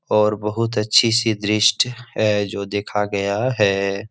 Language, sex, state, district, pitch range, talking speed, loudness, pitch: Hindi, male, Bihar, Jahanabad, 100-110 Hz, 130 wpm, -19 LUFS, 105 Hz